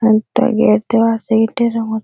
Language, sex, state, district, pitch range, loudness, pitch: Bengali, female, West Bengal, Purulia, 220-230 Hz, -15 LUFS, 225 Hz